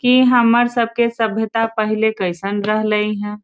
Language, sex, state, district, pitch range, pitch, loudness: Hindi, female, Bihar, Muzaffarpur, 210-235 Hz, 220 Hz, -17 LUFS